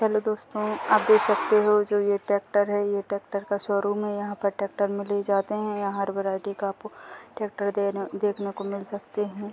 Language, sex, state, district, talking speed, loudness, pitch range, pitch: Hindi, female, Uttar Pradesh, Deoria, 215 wpm, -26 LUFS, 200-210 Hz, 205 Hz